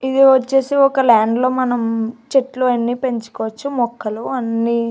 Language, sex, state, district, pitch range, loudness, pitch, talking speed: Telugu, female, Andhra Pradesh, Annamaya, 230-265 Hz, -17 LUFS, 245 Hz, 135 wpm